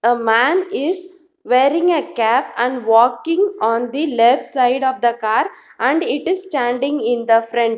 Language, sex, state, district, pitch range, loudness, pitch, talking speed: English, female, Telangana, Hyderabad, 235-320 Hz, -17 LUFS, 250 Hz, 170 wpm